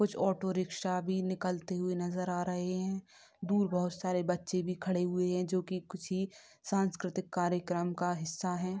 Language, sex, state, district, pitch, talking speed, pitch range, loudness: Hindi, female, Bihar, Sitamarhi, 180 Hz, 170 wpm, 180-185 Hz, -34 LUFS